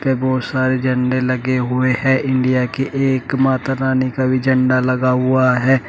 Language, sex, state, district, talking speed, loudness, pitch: Hindi, male, Uttar Pradesh, Shamli, 175 wpm, -17 LUFS, 130 Hz